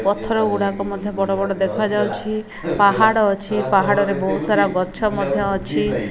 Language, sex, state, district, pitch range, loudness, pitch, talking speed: Odia, female, Odisha, Malkangiri, 195-210 Hz, -19 LUFS, 200 Hz, 135 wpm